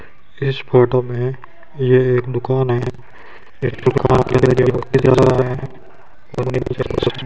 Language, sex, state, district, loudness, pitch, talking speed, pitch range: Hindi, male, Rajasthan, Bikaner, -17 LUFS, 130 Hz, 90 wpm, 125-130 Hz